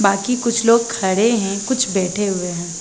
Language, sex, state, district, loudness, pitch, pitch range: Hindi, female, Chhattisgarh, Balrampur, -18 LUFS, 200 Hz, 190-230 Hz